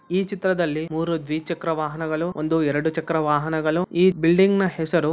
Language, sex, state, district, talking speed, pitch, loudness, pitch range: Kannada, male, Karnataka, Bellary, 140 wpm, 165 Hz, -22 LUFS, 155-175 Hz